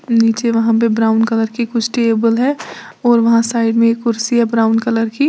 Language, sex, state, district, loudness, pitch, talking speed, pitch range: Hindi, female, Uttar Pradesh, Lalitpur, -14 LUFS, 230 Hz, 215 wpm, 225-235 Hz